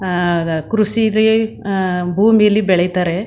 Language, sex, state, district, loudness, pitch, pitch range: Kannada, female, Karnataka, Mysore, -15 LUFS, 190 Hz, 180-215 Hz